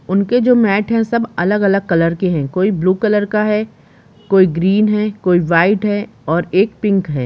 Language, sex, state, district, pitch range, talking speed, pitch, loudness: Hindi, male, Jharkhand, Jamtara, 180-210 Hz, 205 wpm, 200 Hz, -15 LUFS